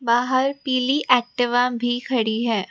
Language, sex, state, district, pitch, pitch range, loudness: Hindi, female, Rajasthan, Jaipur, 245 Hz, 235-260 Hz, -21 LUFS